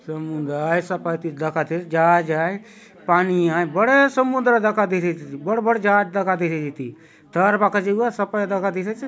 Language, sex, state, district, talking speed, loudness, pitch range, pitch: Halbi, male, Chhattisgarh, Bastar, 205 wpm, -20 LUFS, 165-205 Hz, 180 Hz